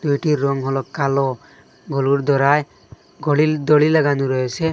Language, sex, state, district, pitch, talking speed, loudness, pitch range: Bengali, male, Assam, Hailakandi, 140 Hz, 125 wpm, -18 LUFS, 135-150 Hz